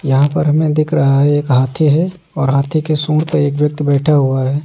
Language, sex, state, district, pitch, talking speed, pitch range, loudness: Hindi, male, Bihar, Kaimur, 150 Hz, 230 wpm, 140-155 Hz, -14 LUFS